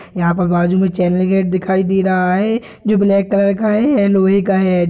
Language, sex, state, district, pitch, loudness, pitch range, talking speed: Hindi, male, Bihar, Purnia, 190 Hz, -15 LUFS, 185-200 Hz, 230 wpm